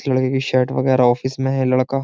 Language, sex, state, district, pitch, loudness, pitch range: Hindi, male, Uttar Pradesh, Jyotiba Phule Nagar, 130 Hz, -18 LUFS, 130-135 Hz